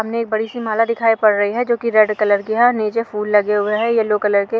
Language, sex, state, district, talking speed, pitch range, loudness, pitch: Hindi, female, Uttar Pradesh, Jalaun, 315 wpm, 210-230 Hz, -17 LUFS, 220 Hz